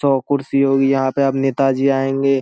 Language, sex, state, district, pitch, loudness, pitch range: Hindi, male, Bihar, Saharsa, 135 Hz, -17 LUFS, 135-140 Hz